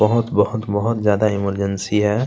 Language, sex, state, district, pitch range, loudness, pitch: Hindi, male, Chhattisgarh, Kabirdham, 100-110 Hz, -19 LUFS, 105 Hz